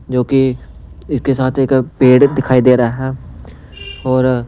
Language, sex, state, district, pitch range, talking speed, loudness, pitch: Hindi, male, Punjab, Pathankot, 110-130 Hz, 145 wpm, -14 LUFS, 130 Hz